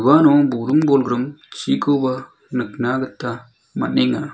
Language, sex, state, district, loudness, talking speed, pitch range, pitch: Garo, male, Meghalaya, South Garo Hills, -19 LUFS, 85 wpm, 120-145 Hz, 130 Hz